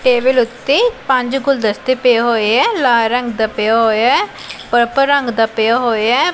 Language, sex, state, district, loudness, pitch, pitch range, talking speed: Punjabi, female, Punjab, Pathankot, -14 LUFS, 240 Hz, 225-275 Hz, 180 wpm